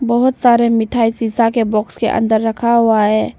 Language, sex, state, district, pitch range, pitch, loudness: Hindi, female, Arunachal Pradesh, Papum Pare, 220-235 Hz, 230 Hz, -14 LUFS